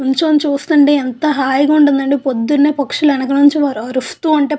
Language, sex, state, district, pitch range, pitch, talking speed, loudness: Telugu, female, Andhra Pradesh, Visakhapatnam, 270-300 Hz, 285 Hz, 145 wpm, -13 LUFS